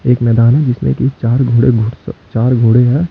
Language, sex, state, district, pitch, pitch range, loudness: Hindi, male, Chandigarh, Chandigarh, 120 Hz, 115-125 Hz, -12 LUFS